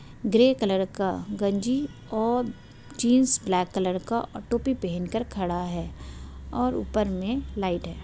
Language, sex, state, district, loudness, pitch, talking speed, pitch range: Hindi, female, Bihar, Purnia, -26 LUFS, 205 Hz, 150 wpm, 180-240 Hz